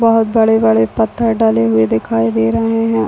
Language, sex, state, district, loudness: Hindi, female, Chhattisgarh, Bilaspur, -13 LUFS